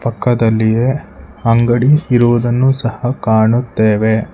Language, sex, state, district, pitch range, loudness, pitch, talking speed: Kannada, male, Karnataka, Bangalore, 110-125 Hz, -13 LUFS, 120 Hz, 70 wpm